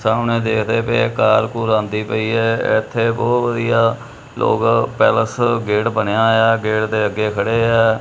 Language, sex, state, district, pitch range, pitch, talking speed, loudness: Punjabi, male, Punjab, Kapurthala, 110-115 Hz, 115 Hz, 170 wpm, -16 LUFS